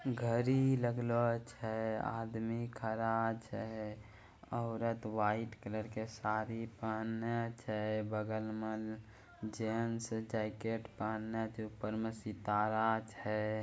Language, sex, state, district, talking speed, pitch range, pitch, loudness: Angika, male, Bihar, Begusarai, 105 wpm, 110-115 Hz, 110 Hz, -38 LUFS